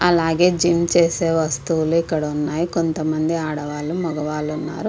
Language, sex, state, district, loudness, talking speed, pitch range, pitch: Telugu, female, Andhra Pradesh, Visakhapatnam, -20 LUFS, 120 wpm, 155-170 Hz, 165 Hz